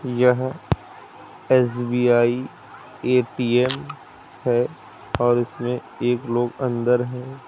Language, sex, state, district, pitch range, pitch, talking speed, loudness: Hindi, male, Uttar Pradesh, Lucknow, 120-125 Hz, 125 Hz, 80 wpm, -22 LUFS